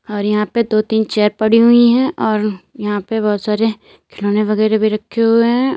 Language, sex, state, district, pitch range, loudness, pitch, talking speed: Hindi, female, Uttar Pradesh, Lalitpur, 210-230 Hz, -15 LUFS, 215 Hz, 210 wpm